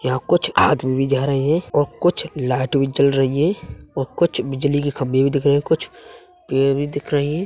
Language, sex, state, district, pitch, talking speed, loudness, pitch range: Hindi, male, Uttar Pradesh, Hamirpur, 140 Hz, 225 wpm, -19 LUFS, 135-150 Hz